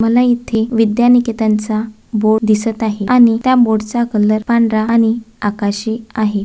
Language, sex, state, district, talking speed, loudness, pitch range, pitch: Marathi, female, Maharashtra, Dhule, 150 wpm, -14 LUFS, 215-235 Hz, 225 Hz